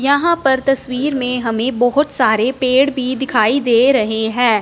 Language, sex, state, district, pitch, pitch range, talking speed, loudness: Hindi, female, Punjab, Fazilka, 255 Hz, 240-270 Hz, 170 wpm, -15 LUFS